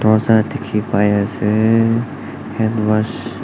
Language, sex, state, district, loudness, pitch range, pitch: Nagamese, male, Nagaland, Dimapur, -16 LUFS, 105-115 Hz, 110 Hz